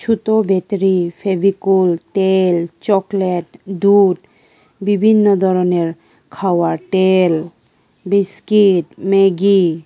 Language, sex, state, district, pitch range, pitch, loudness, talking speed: Bengali, female, Tripura, West Tripura, 175-200 Hz, 190 Hz, -15 LUFS, 75 wpm